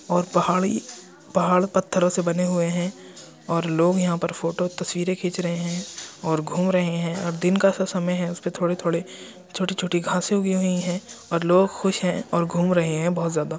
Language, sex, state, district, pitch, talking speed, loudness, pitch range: Hindi, male, Uttar Pradesh, Jyotiba Phule Nagar, 180 Hz, 195 wpm, -23 LUFS, 170-185 Hz